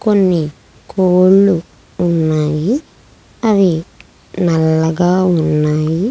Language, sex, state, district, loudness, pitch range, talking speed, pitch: Telugu, female, Andhra Pradesh, Krishna, -14 LUFS, 160-190 Hz, 60 wpm, 175 Hz